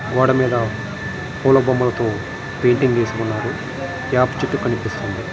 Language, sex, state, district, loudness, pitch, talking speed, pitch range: Telugu, male, Andhra Pradesh, Srikakulam, -19 LUFS, 125 Hz, 110 wpm, 115-130 Hz